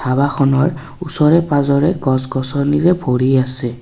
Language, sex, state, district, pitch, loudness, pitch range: Assamese, male, Assam, Kamrup Metropolitan, 140 Hz, -15 LUFS, 130-150 Hz